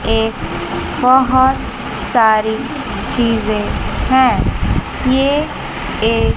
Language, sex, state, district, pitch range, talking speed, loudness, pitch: Hindi, female, Chandigarh, Chandigarh, 225-260 Hz, 65 wpm, -16 LUFS, 250 Hz